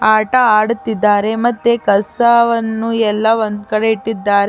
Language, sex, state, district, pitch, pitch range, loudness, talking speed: Kannada, female, Karnataka, Chamarajanagar, 220 Hz, 210-230 Hz, -14 LUFS, 120 wpm